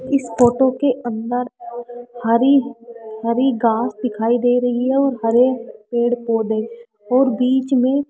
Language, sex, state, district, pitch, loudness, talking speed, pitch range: Hindi, female, Rajasthan, Jaipur, 245 Hz, -18 LUFS, 135 wpm, 230-260 Hz